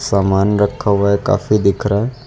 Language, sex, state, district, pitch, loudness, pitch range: Hindi, male, Uttar Pradesh, Lucknow, 100 Hz, -15 LUFS, 100-105 Hz